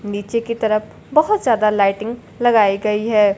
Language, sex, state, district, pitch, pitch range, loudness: Hindi, female, Bihar, Kaimur, 215 Hz, 205-230 Hz, -17 LUFS